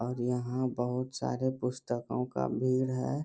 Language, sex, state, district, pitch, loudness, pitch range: Hindi, male, Bihar, Bhagalpur, 125 Hz, -33 LUFS, 120-130 Hz